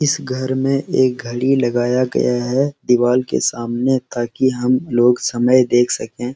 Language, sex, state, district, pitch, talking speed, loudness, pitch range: Hindi, male, Bihar, Araria, 125 Hz, 140 wpm, -17 LUFS, 120-130 Hz